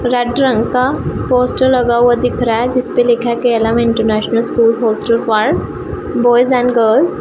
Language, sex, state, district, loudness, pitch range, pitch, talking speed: Hindi, female, Punjab, Pathankot, -13 LUFS, 230-250 Hz, 240 Hz, 165 wpm